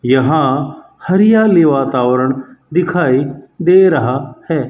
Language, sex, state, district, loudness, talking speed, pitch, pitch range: Hindi, male, Rajasthan, Bikaner, -13 LUFS, 90 wpm, 140 Hz, 130-175 Hz